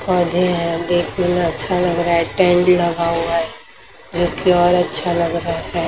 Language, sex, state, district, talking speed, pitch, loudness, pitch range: Hindi, female, Maharashtra, Mumbai Suburban, 185 wpm, 175 Hz, -17 LUFS, 170-180 Hz